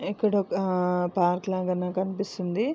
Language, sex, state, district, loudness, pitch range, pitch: Telugu, female, Andhra Pradesh, Visakhapatnam, -27 LUFS, 180-200 Hz, 185 Hz